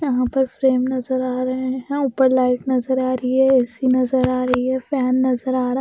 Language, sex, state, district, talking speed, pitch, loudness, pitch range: Hindi, female, Bihar, Patna, 235 wpm, 255 Hz, -19 LUFS, 255-260 Hz